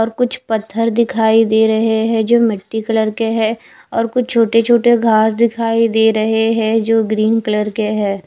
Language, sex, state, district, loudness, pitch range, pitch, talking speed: Hindi, female, Odisha, Khordha, -14 LUFS, 220-230 Hz, 225 Hz, 190 wpm